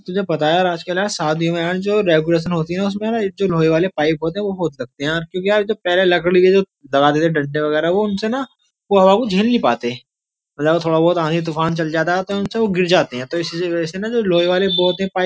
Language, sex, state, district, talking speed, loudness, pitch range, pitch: Hindi, male, Uttar Pradesh, Jyotiba Phule Nagar, 265 wpm, -17 LUFS, 160-195 Hz, 175 Hz